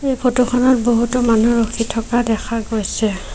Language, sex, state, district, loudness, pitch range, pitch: Assamese, female, Assam, Sonitpur, -17 LUFS, 225-245 Hz, 235 Hz